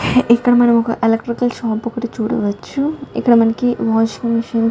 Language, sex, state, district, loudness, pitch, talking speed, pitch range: Telugu, female, Telangana, Karimnagar, -16 LUFS, 235 Hz, 155 wpm, 225-245 Hz